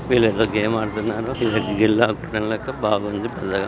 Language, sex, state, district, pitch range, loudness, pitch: Telugu, male, Andhra Pradesh, Srikakulam, 105-115 Hz, -21 LUFS, 110 Hz